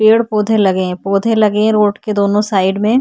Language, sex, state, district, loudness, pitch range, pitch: Hindi, female, Maharashtra, Chandrapur, -13 LUFS, 195-215 Hz, 210 Hz